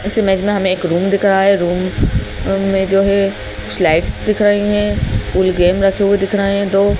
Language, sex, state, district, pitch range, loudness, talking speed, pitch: Hindi, male, Madhya Pradesh, Bhopal, 180-200 Hz, -15 LUFS, 225 wpm, 195 Hz